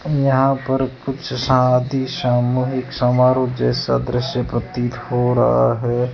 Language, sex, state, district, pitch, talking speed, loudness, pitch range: Hindi, male, Rajasthan, Jaipur, 125 Hz, 115 wpm, -18 LUFS, 125-130 Hz